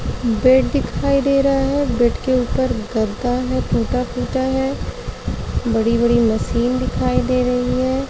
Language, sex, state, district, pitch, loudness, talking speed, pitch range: Hindi, female, Uttar Pradesh, Varanasi, 255 Hz, -18 LUFS, 150 wpm, 235-265 Hz